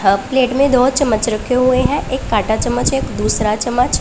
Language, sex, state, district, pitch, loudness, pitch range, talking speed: Hindi, female, Punjab, Pathankot, 230 Hz, -15 LUFS, 200-255 Hz, 210 wpm